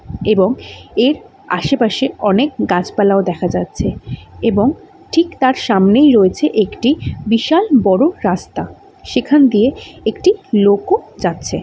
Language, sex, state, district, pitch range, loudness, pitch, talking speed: Bengali, female, West Bengal, Jalpaiguri, 200-290 Hz, -14 LUFS, 230 Hz, 115 wpm